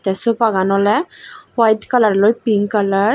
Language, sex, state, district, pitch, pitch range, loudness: Chakma, female, Tripura, Dhalai, 210 Hz, 195-225 Hz, -15 LUFS